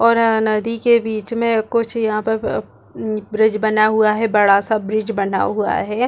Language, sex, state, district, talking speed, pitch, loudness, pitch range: Hindi, female, Chhattisgarh, Bastar, 190 wpm, 220 Hz, -17 LUFS, 215-230 Hz